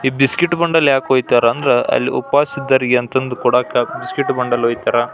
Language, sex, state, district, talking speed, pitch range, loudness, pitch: Kannada, male, Karnataka, Belgaum, 165 wpm, 125-140 Hz, -16 LUFS, 130 Hz